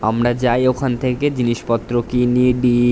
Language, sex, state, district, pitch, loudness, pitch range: Bengali, male, West Bengal, Jalpaiguri, 125 Hz, -17 LUFS, 120-125 Hz